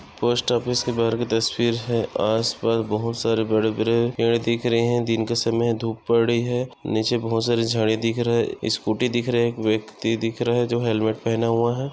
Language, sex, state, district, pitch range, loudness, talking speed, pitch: Hindi, male, Maharashtra, Nagpur, 115-120 Hz, -22 LUFS, 215 wpm, 115 Hz